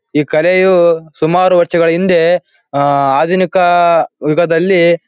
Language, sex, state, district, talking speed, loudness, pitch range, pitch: Kannada, male, Karnataka, Bellary, 120 wpm, -11 LUFS, 160-180 Hz, 170 Hz